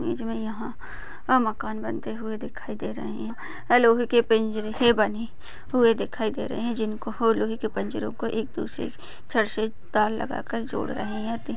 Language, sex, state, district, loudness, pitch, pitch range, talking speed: Hindi, female, Maharashtra, Sindhudurg, -26 LUFS, 225 Hz, 220-235 Hz, 185 wpm